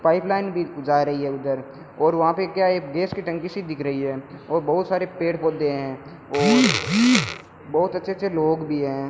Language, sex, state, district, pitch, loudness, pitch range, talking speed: Hindi, male, Rajasthan, Bikaner, 160 Hz, -22 LUFS, 140-185 Hz, 210 wpm